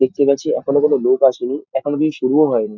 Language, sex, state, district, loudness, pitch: Bengali, male, West Bengal, Dakshin Dinajpur, -17 LUFS, 150 Hz